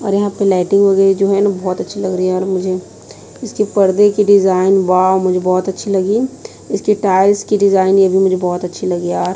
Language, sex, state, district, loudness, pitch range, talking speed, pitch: Hindi, female, Chhattisgarh, Raipur, -14 LUFS, 185-200 Hz, 230 wpm, 195 Hz